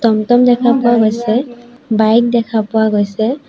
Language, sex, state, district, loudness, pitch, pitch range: Assamese, female, Assam, Sonitpur, -13 LUFS, 235 Hz, 220-245 Hz